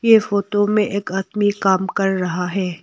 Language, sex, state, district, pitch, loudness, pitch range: Hindi, female, Arunachal Pradesh, Longding, 195 Hz, -19 LUFS, 190-205 Hz